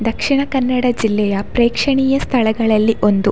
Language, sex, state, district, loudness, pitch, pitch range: Kannada, female, Karnataka, Dakshina Kannada, -16 LUFS, 230 Hz, 215-265 Hz